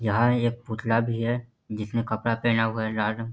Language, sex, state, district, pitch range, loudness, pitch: Hindi, male, Bihar, Jahanabad, 110-120 Hz, -26 LUFS, 115 Hz